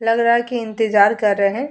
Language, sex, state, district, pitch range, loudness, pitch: Hindi, female, Uttar Pradesh, Hamirpur, 205-235 Hz, -17 LUFS, 225 Hz